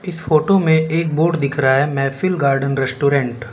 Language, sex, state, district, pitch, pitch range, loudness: Hindi, male, Gujarat, Valsad, 145 Hz, 135-165 Hz, -17 LUFS